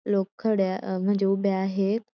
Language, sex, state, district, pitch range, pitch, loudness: Marathi, female, Maharashtra, Dhule, 190-200 Hz, 195 Hz, -25 LUFS